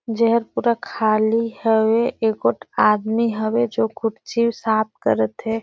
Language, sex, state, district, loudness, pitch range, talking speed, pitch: Surgujia, female, Chhattisgarh, Sarguja, -20 LUFS, 215-230 Hz, 130 wpm, 220 Hz